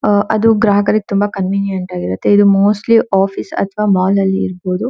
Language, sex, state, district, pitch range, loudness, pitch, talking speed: Kannada, female, Karnataka, Shimoga, 190-210 Hz, -14 LUFS, 200 Hz, 170 wpm